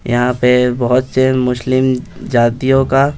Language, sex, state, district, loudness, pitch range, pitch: Hindi, male, Bihar, Patna, -14 LUFS, 125-130 Hz, 125 Hz